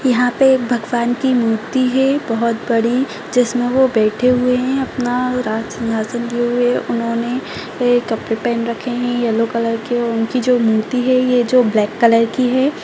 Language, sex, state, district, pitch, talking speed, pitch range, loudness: Kumaoni, female, Uttarakhand, Tehri Garhwal, 245 Hz, 180 wpm, 230-250 Hz, -16 LUFS